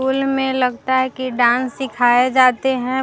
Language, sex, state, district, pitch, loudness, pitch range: Hindi, female, Bihar, Vaishali, 260 Hz, -17 LUFS, 250-265 Hz